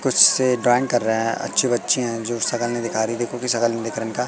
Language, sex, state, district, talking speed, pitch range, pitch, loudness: Hindi, male, Madhya Pradesh, Katni, 295 wpm, 115-125 Hz, 120 Hz, -20 LUFS